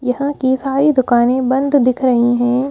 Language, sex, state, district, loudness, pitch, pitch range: Hindi, female, Madhya Pradesh, Bhopal, -15 LUFS, 260 Hz, 250-270 Hz